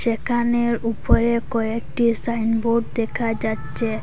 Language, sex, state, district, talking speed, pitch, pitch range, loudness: Bengali, female, Assam, Hailakandi, 105 wpm, 230 Hz, 225-235 Hz, -22 LUFS